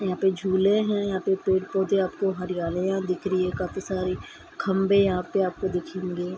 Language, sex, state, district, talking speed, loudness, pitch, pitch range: Hindi, female, Bihar, Gopalganj, 215 wpm, -25 LUFS, 190 Hz, 185-195 Hz